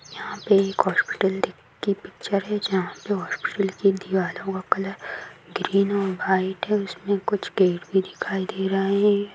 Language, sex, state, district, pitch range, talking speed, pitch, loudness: Hindi, female, Bihar, Vaishali, 190-200 Hz, 160 wpm, 195 Hz, -24 LUFS